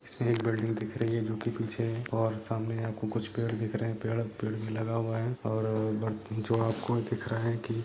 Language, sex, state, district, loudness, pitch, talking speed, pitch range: Hindi, male, Jharkhand, Jamtara, -32 LUFS, 115 Hz, 220 wpm, 110-115 Hz